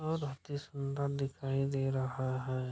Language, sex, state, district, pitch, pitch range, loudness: Hindi, male, Bihar, Kishanganj, 135 Hz, 130-140 Hz, -36 LUFS